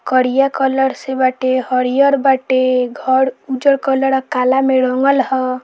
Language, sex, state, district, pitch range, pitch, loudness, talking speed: Bhojpuri, female, Bihar, Saran, 255-270 Hz, 265 Hz, -15 LUFS, 150 wpm